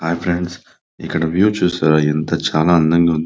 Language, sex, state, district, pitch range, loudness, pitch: Telugu, male, Andhra Pradesh, Visakhapatnam, 80-85 Hz, -16 LUFS, 85 Hz